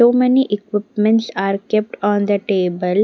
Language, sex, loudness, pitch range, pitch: English, female, -17 LUFS, 200-220 Hz, 205 Hz